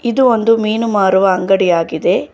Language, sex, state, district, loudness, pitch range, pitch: Kannada, female, Karnataka, Bangalore, -13 LUFS, 185-230 Hz, 195 Hz